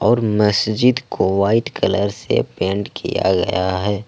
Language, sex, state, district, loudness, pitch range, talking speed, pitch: Hindi, male, Jharkhand, Ranchi, -18 LUFS, 100-115 Hz, 145 wpm, 105 Hz